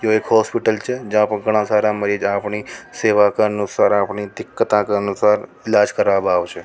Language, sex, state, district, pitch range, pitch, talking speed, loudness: Rajasthani, male, Rajasthan, Nagaur, 100-110 Hz, 105 Hz, 190 wpm, -18 LUFS